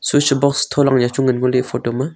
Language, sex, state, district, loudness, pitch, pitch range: Wancho, male, Arunachal Pradesh, Longding, -16 LUFS, 130 Hz, 125-140 Hz